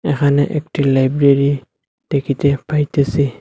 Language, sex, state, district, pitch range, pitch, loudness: Bengali, male, Assam, Hailakandi, 140-145 Hz, 140 Hz, -16 LUFS